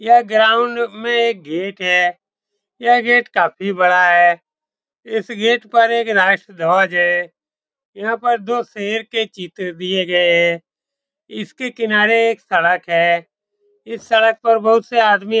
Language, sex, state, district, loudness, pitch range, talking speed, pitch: Hindi, male, Bihar, Saran, -15 LUFS, 180-230 Hz, 150 wpm, 210 Hz